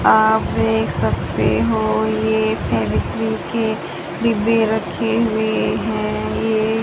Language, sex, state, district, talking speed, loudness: Hindi, male, Haryana, Rohtak, 105 wpm, -19 LUFS